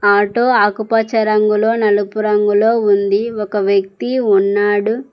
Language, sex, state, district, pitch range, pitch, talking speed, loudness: Telugu, female, Telangana, Mahabubabad, 205-225 Hz, 210 Hz, 105 wpm, -14 LUFS